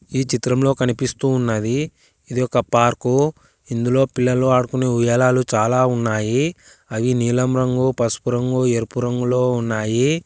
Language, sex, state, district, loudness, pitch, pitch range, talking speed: Telugu, male, Telangana, Hyderabad, -19 LUFS, 125 Hz, 120-130 Hz, 125 wpm